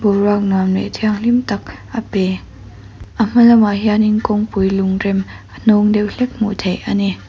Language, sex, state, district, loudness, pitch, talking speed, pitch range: Mizo, female, Mizoram, Aizawl, -15 LUFS, 205 Hz, 165 wpm, 190-215 Hz